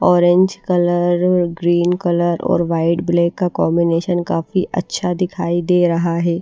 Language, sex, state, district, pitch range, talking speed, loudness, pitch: Hindi, female, Bihar, Patna, 170-180 Hz, 140 wpm, -17 LUFS, 175 Hz